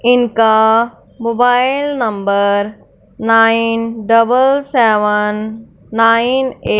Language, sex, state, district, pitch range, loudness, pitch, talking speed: Hindi, female, Punjab, Fazilka, 215-245 Hz, -13 LUFS, 230 Hz, 70 wpm